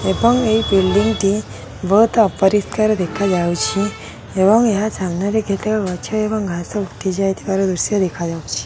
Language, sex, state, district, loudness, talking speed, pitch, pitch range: Odia, female, Odisha, Khordha, -17 LUFS, 120 wpm, 195 Hz, 185-215 Hz